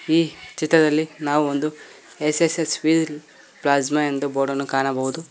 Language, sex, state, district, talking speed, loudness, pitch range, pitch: Kannada, male, Karnataka, Koppal, 115 wpm, -21 LUFS, 140-160 Hz, 150 Hz